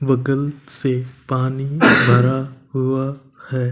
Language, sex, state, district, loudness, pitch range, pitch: Hindi, male, Punjab, Kapurthala, -18 LUFS, 130-135 Hz, 130 Hz